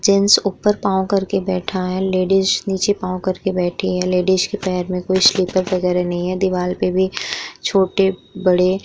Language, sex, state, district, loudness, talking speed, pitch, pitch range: Hindi, female, Bihar, Vaishali, -18 LUFS, 190 wpm, 185 Hz, 185-195 Hz